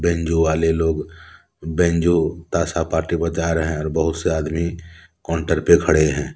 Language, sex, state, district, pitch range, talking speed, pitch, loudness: Hindi, male, Jharkhand, Deoghar, 80-85 Hz, 160 wpm, 80 Hz, -20 LUFS